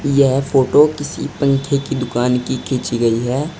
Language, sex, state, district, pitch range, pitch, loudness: Hindi, male, Uttar Pradesh, Saharanpur, 125-145 Hz, 135 Hz, -17 LUFS